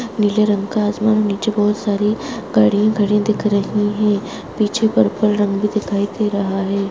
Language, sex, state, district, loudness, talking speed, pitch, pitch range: Hindi, female, Uttarakhand, Tehri Garhwal, -17 LUFS, 175 wpm, 210 Hz, 200-215 Hz